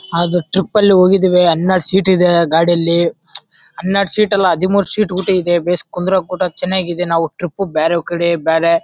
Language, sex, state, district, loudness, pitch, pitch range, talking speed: Kannada, male, Karnataka, Bellary, -14 LUFS, 180 Hz, 170-190 Hz, 165 wpm